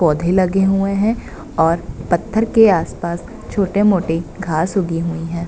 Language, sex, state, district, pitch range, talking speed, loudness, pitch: Hindi, female, Bihar, Bhagalpur, 165-195 Hz, 140 wpm, -17 LUFS, 175 Hz